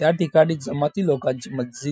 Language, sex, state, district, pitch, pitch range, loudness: Marathi, female, Maharashtra, Dhule, 145 Hz, 135-160 Hz, -22 LUFS